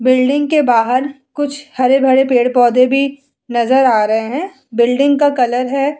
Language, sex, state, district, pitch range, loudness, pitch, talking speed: Hindi, female, Bihar, Vaishali, 245-280 Hz, -14 LUFS, 265 Hz, 160 wpm